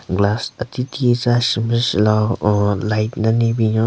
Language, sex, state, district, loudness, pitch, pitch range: Rengma, male, Nagaland, Kohima, -18 LUFS, 110 Hz, 105-120 Hz